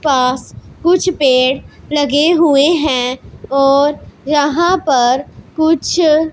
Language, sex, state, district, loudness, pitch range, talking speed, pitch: Hindi, female, Punjab, Pathankot, -13 LUFS, 270-320 Hz, 95 wpm, 290 Hz